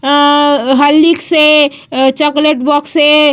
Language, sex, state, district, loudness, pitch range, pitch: Hindi, female, Bihar, Vaishali, -9 LUFS, 285-300 Hz, 290 Hz